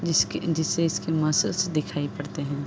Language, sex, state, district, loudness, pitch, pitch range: Hindi, female, Uttar Pradesh, Deoria, -25 LUFS, 160 Hz, 145-165 Hz